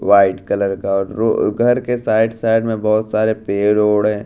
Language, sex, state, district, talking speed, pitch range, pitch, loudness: Hindi, male, Bihar, Katihar, 185 wpm, 100-115 Hz, 110 Hz, -16 LUFS